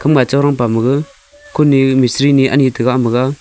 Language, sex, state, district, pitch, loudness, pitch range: Wancho, male, Arunachal Pradesh, Longding, 135 Hz, -13 LUFS, 130-145 Hz